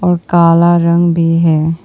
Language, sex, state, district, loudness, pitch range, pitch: Hindi, female, Arunachal Pradesh, Papum Pare, -10 LUFS, 165-175 Hz, 170 Hz